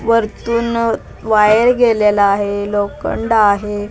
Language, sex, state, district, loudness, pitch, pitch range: Marathi, female, Maharashtra, Mumbai Suburban, -15 LUFS, 210 Hz, 205-230 Hz